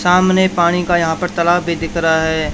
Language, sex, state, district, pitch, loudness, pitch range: Hindi, male, Haryana, Charkhi Dadri, 170 Hz, -15 LUFS, 165-180 Hz